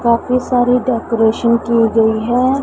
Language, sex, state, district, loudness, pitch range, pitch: Hindi, female, Punjab, Pathankot, -14 LUFS, 230-250 Hz, 235 Hz